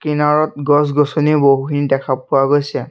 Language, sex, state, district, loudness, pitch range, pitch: Assamese, male, Assam, Sonitpur, -15 LUFS, 135-150 Hz, 145 Hz